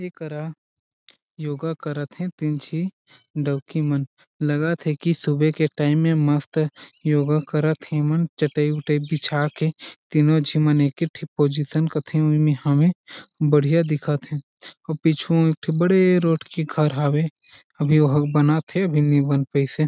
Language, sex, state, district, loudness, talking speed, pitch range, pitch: Chhattisgarhi, male, Chhattisgarh, Jashpur, -21 LUFS, 165 wpm, 145-160 Hz, 155 Hz